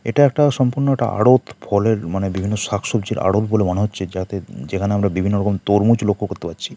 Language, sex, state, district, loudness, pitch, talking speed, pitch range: Bengali, male, West Bengal, Kolkata, -19 LUFS, 105 Hz, 195 wpm, 95-115 Hz